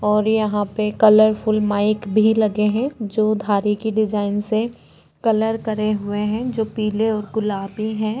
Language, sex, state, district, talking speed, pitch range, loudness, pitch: Hindi, female, Uttarakhand, Tehri Garhwal, 170 wpm, 210-220 Hz, -19 LUFS, 215 Hz